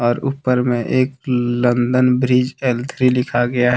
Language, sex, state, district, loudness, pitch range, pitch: Hindi, male, Jharkhand, Deoghar, -17 LUFS, 120-130 Hz, 125 Hz